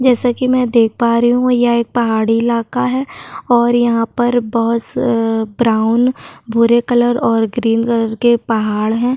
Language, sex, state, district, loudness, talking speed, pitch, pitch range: Hindi, female, Maharashtra, Chandrapur, -14 LUFS, 175 wpm, 235 Hz, 225-240 Hz